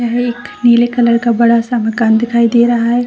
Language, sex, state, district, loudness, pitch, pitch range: Hindi, female, Bihar, Saran, -12 LUFS, 235 Hz, 235-240 Hz